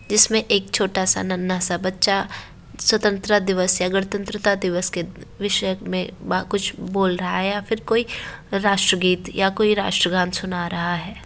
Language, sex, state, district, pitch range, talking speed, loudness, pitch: Hindi, female, Uttar Pradesh, Varanasi, 180-205 Hz, 170 wpm, -21 LUFS, 195 Hz